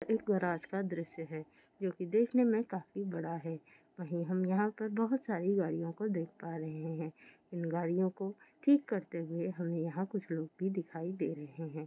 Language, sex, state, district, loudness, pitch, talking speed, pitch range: Hindi, female, Rajasthan, Churu, -36 LUFS, 180 Hz, 180 wpm, 165-200 Hz